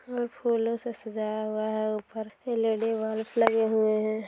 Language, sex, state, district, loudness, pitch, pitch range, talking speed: Hindi, female, Bihar, Gaya, -28 LUFS, 220 Hz, 215-230 Hz, 170 wpm